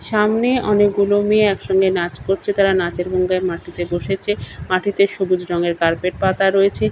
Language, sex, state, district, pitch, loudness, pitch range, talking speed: Bengali, male, West Bengal, Kolkata, 190 Hz, -18 LUFS, 175-205 Hz, 165 wpm